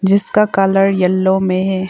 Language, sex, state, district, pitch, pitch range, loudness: Hindi, female, Arunachal Pradesh, Longding, 190 Hz, 190-195 Hz, -14 LUFS